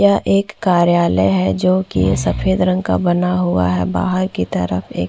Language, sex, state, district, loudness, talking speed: Hindi, female, Chhattisgarh, Korba, -16 LUFS, 175 wpm